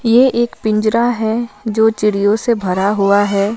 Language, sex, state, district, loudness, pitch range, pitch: Hindi, female, Punjab, Fazilka, -15 LUFS, 205-235 Hz, 220 Hz